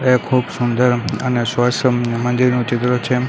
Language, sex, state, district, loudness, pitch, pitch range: Gujarati, male, Gujarat, Gandhinagar, -17 LUFS, 125 Hz, 120-125 Hz